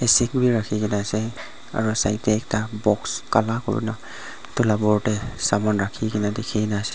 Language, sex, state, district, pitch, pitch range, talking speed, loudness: Nagamese, male, Nagaland, Dimapur, 110 Hz, 105-110 Hz, 155 wpm, -23 LUFS